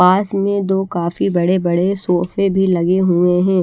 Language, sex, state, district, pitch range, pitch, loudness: Hindi, female, Haryana, Charkhi Dadri, 175-195 Hz, 185 Hz, -16 LUFS